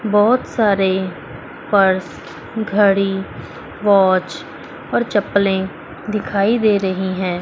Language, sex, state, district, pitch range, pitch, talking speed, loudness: Hindi, female, Chandigarh, Chandigarh, 190-210 Hz, 195 Hz, 90 wpm, -17 LUFS